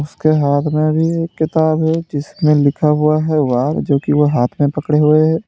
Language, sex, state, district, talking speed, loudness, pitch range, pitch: Hindi, male, Uttar Pradesh, Lalitpur, 210 wpm, -15 LUFS, 145-160 Hz, 150 Hz